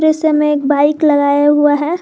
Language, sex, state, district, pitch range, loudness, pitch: Hindi, female, Jharkhand, Garhwa, 290-310 Hz, -12 LUFS, 295 Hz